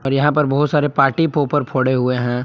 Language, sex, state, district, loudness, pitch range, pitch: Hindi, male, Jharkhand, Palamu, -17 LUFS, 130-150 Hz, 140 Hz